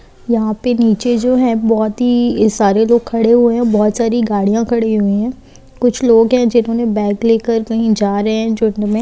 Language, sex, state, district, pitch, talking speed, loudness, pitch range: Hindi, female, Bihar, Saran, 225 Hz, 185 wpm, -14 LUFS, 215-235 Hz